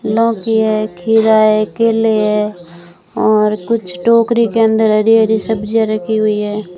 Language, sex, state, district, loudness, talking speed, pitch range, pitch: Hindi, female, Rajasthan, Bikaner, -13 LUFS, 150 wpm, 210-225 Hz, 220 Hz